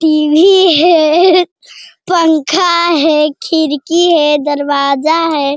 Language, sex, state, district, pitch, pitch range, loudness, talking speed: Hindi, female, Bihar, Jamui, 320 Hz, 300-345 Hz, -10 LUFS, 85 wpm